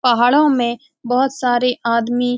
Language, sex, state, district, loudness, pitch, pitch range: Hindi, female, Bihar, Saran, -16 LUFS, 245 Hz, 240-260 Hz